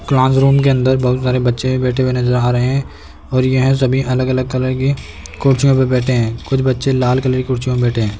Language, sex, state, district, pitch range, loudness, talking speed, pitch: Hindi, male, Rajasthan, Jaipur, 125-130 Hz, -15 LUFS, 240 wpm, 130 Hz